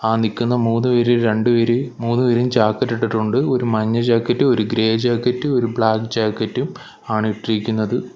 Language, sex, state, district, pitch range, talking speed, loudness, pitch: Malayalam, male, Kerala, Kollam, 110-120 Hz, 130 wpm, -18 LUFS, 115 Hz